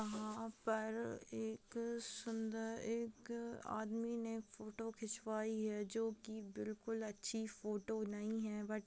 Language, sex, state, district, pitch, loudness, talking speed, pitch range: Hindi, female, Bihar, Purnia, 220 Hz, -45 LUFS, 130 wpm, 215-225 Hz